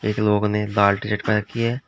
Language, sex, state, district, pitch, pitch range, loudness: Hindi, male, Uttar Pradesh, Shamli, 105 Hz, 105-110 Hz, -21 LUFS